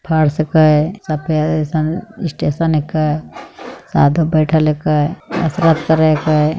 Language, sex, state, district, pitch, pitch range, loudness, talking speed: Hindi, female, Bihar, Begusarai, 155 Hz, 155-160 Hz, -15 LUFS, 130 wpm